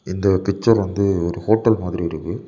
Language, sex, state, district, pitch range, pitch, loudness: Tamil, male, Tamil Nadu, Kanyakumari, 85-105 Hz, 95 Hz, -19 LUFS